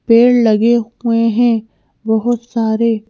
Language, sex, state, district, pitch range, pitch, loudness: Hindi, female, Madhya Pradesh, Bhopal, 225-235 Hz, 230 Hz, -14 LUFS